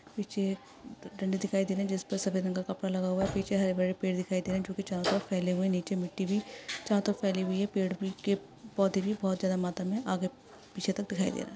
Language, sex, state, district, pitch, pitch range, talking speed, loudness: Hindi, female, Maharashtra, Solapur, 195 Hz, 185-200 Hz, 250 wpm, -32 LUFS